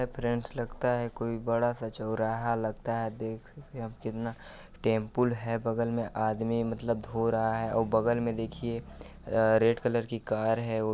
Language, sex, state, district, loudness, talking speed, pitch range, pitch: Hindi, male, Chhattisgarh, Balrampur, -31 LUFS, 170 wpm, 110-115 Hz, 115 Hz